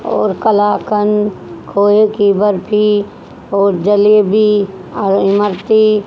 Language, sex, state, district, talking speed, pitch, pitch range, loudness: Hindi, female, Haryana, Jhajjar, 100 wpm, 205 Hz, 200-210 Hz, -13 LUFS